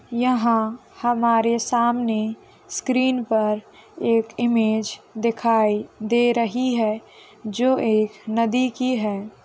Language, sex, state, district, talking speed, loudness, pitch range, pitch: Hindi, female, Chhattisgarh, Korba, 100 wpm, -22 LUFS, 220-240 Hz, 230 Hz